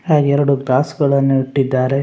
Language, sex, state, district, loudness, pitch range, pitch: Kannada, male, Karnataka, Raichur, -15 LUFS, 135-145 Hz, 140 Hz